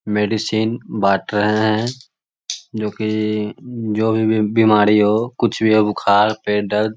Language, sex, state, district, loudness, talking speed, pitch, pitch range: Magahi, male, Bihar, Lakhisarai, -17 LUFS, 145 wpm, 110 Hz, 105-110 Hz